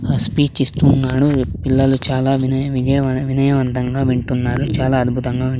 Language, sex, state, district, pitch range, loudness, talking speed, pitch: Telugu, male, Andhra Pradesh, Sri Satya Sai, 130-135 Hz, -17 LUFS, 120 wpm, 130 Hz